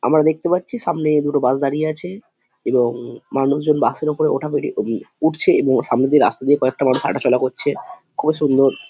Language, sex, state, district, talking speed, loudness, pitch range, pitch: Bengali, male, West Bengal, Dakshin Dinajpur, 210 wpm, -18 LUFS, 130-155 Hz, 145 Hz